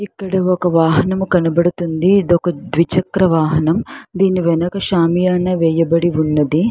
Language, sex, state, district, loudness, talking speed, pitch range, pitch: Telugu, female, Andhra Pradesh, Srikakulam, -15 LUFS, 105 wpm, 165-185 Hz, 175 Hz